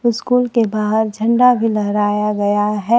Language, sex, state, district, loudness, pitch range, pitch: Hindi, female, Bihar, Kaimur, -16 LUFS, 210-235 Hz, 220 Hz